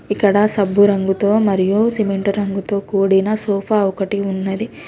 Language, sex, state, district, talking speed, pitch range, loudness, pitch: Telugu, female, Telangana, Hyderabad, 110 wpm, 195-210 Hz, -17 LUFS, 200 Hz